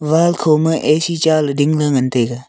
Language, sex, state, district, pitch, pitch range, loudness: Wancho, male, Arunachal Pradesh, Longding, 155 Hz, 140-160 Hz, -15 LUFS